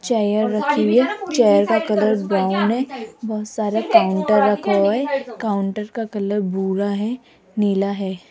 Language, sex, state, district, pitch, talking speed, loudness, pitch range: Hindi, female, Rajasthan, Jaipur, 210 Hz, 160 wpm, -19 LUFS, 200-225 Hz